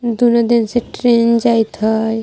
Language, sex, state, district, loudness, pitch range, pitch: Magahi, female, Jharkhand, Palamu, -14 LUFS, 225-235 Hz, 235 Hz